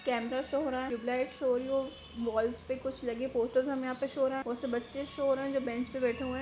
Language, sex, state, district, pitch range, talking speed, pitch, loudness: Hindi, female, Bihar, Jamui, 245-270 Hz, 325 wpm, 260 Hz, -34 LUFS